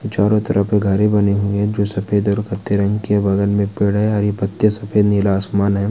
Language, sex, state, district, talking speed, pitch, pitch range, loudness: Hindi, male, Bihar, Saran, 245 wpm, 100 Hz, 100-105 Hz, -17 LUFS